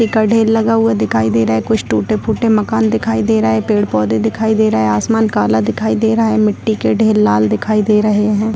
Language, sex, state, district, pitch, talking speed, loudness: Hindi, female, Bihar, Darbhanga, 205 Hz, 240 wpm, -14 LUFS